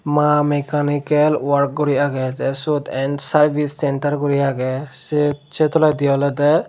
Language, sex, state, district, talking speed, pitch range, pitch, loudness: Chakma, male, Tripura, Dhalai, 135 wpm, 140-150 Hz, 145 Hz, -18 LUFS